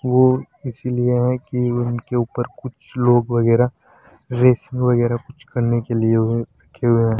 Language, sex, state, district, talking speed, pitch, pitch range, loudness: Hindi, male, Rajasthan, Jaipur, 160 wpm, 120 Hz, 120-125 Hz, -19 LUFS